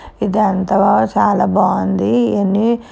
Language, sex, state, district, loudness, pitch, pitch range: Telugu, female, Andhra Pradesh, Guntur, -15 LUFS, 200 Hz, 190-230 Hz